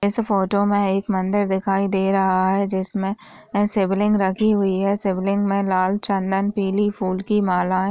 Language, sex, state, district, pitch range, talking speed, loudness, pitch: Hindi, female, Uttar Pradesh, Varanasi, 190-205 Hz, 175 wpm, -20 LUFS, 195 Hz